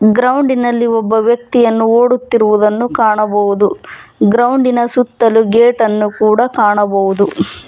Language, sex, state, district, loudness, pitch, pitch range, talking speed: Kannada, female, Karnataka, Bangalore, -12 LUFS, 225 Hz, 210-240 Hz, 80 wpm